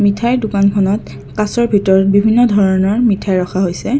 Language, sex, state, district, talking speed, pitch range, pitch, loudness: Assamese, female, Assam, Kamrup Metropolitan, 135 wpm, 190-220 Hz, 200 Hz, -13 LUFS